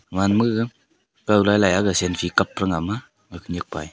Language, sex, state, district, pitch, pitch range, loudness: Wancho, male, Arunachal Pradesh, Longding, 100 Hz, 90-105 Hz, -21 LUFS